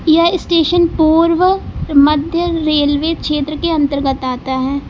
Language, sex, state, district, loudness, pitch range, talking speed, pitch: Hindi, female, Uttar Pradesh, Lucknow, -14 LUFS, 285-335 Hz, 125 wpm, 315 Hz